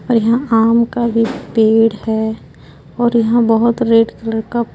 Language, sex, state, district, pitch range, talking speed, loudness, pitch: Hindi, female, Jharkhand, Ranchi, 225-235 Hz, 175 wpm, -14 LUFS, 230 Hz